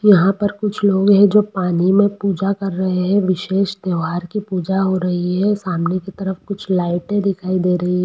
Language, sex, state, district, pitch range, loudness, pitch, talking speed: Hindi, female, Jharkhand, Jamtara, 180-200 Hz, -18 LUFS, 190 Hz, 210 wpm